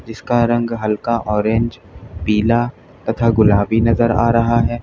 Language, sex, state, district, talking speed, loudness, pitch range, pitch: Hindi, male, Uttar Pradesh, Lalitpur, 135 wpm, -16 LUFS, 110-115 Hz, 115 Hz